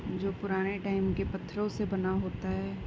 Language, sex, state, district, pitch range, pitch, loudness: Hindi, female, Uttar Pradesh, Varanasi, 175-200 Hz, 190 Hz, -33 LUFS